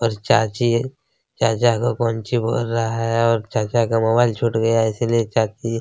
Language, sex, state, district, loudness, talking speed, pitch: Hindi, male, Chhattisgarh, Kabirdham, -19 LUFS, 175 wpm, 115 Hz